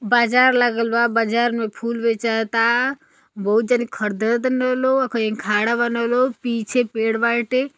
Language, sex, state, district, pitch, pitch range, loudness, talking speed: Bhojpuri, female, Uttar Pradesh, Deoria, 235 Hz, 225-250 Hz, -19 LUFS, 145 wpm